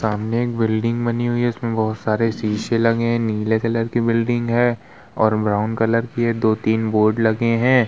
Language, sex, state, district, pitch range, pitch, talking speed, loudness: Hindi, male, Bihar, Vaishali, 110-115 Hz, 115 Hz, 205 wpm, -19 LUFS